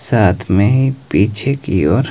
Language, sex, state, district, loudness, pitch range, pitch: Hindi, male, Himachal Pradesh, Shimla, -15 LUFS, 95-135 Hz, 115 Hz